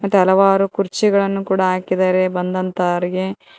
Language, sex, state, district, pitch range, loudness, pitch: Kannada, female, Karnataka, Koppal, 185-195 Hz, -17 LUFS, 185 Hz